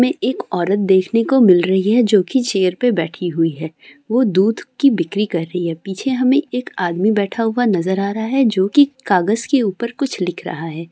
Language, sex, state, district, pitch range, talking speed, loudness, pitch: Hindi, female, Bihar, Saran, 180-245 Hz, 225 wpm, -17 LUFS, 205 Hz